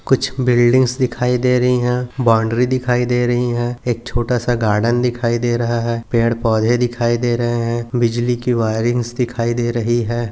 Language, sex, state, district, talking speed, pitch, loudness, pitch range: Hindi, male, Maharashtra, Nagpur, 180 wpm, 120 Hz, -17 LUFS, 120-125 Hz